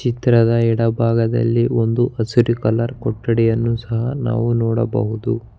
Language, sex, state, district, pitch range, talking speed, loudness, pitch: Kannada, male, Karnataka, Bangalore, 115-120 Hz, 105 wpm, -18 LUFS, 115 Hz